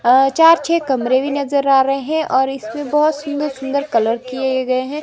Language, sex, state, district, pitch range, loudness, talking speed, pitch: Hindi, female, Himachal Pradesh, Shimla, 260-295 Hz, -16 LUFS, 200 wpm, 275 Hz